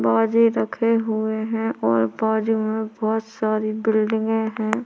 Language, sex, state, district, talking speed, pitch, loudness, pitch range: Hindi, female, Chhattisgarh, Korba, 135 wpm, 220 Hz, -21 LUFS, 215-225 Hz